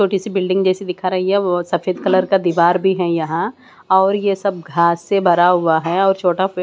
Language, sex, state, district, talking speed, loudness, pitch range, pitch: Hindi, female, Haryana, Charkhi Dadri, 235 wpm, -16 LUFS, 175-195 Hz, 185 Hz